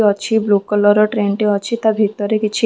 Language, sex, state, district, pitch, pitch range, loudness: Odia, female, Odisha, Khordha, 210 Hz, 205-220 Hz, -16 LUFS